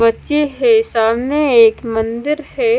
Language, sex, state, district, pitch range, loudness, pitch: Hindi, female, Punjab, Kapurthala, 225-295 Hz, -14 LUFS, 240 Hz